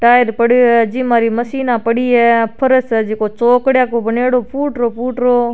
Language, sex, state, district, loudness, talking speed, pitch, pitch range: Rajasthani, female, Rajasthan, Churu, -14 LUFS, 175 wpm, 240 Hz, 235-250 Hz